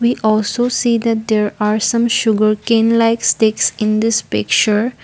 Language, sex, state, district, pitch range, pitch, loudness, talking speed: English, female, Assam, Kamrup Metropolitan, 215-235 Hz, 225 Hz, -15 LUFS, 155 wpm